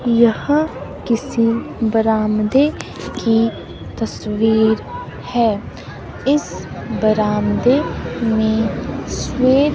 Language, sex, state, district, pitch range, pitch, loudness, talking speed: Hindi, female, Himachal Pradesh, Shimla, 220-255 Hz, 225 Hz, -18 LUFS, 60 wpm